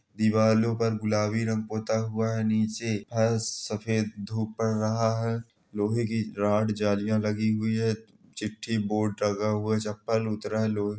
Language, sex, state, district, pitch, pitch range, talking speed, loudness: Hindi, male, Chhattisgarh, Balrampur, 110 Hz, 105-110 Hz, 160 wpm, -28 LUFS